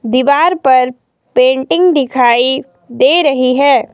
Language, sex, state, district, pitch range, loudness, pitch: Hindi, female, Himachal Pradesh, Shimla, 255-285 Hz, -11 LUFS, 260 Hz